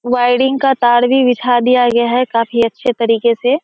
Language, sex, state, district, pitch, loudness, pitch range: Hindi, female, Bihar, Kishanganj, 245 Hz, -13 LUFS, 235-250 Hz